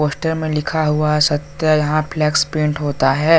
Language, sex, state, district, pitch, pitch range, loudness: Hindi, male, Jharkhand, Deoghar, 150 Hz, 150-155 Hz, -17 LUFS